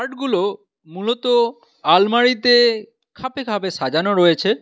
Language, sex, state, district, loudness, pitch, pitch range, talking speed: Bengali, male, West Bengal, Alipurduar, -17 LUFS, 225 Hz, 190-240 Hz, 90 wpm